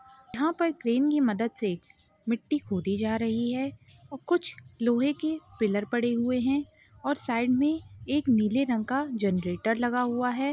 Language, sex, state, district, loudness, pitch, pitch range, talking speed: Hindi, female, Maharashtra, Chandrapur, -28 LUFS, 245 Hz, 225-280 Hz, 170 wpm